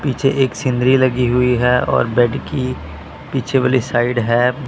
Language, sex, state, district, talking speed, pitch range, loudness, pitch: Hindi, male, Punjab, Pathankot, 165 wpm, 120-130 Hz, -16 LUFS, 125 Hz